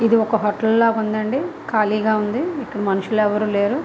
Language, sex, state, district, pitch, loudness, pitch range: Telugu, female, Andhra Pradesh, Visakhapatnam, 220 Hz, -19 LUFS, 210-230 Hz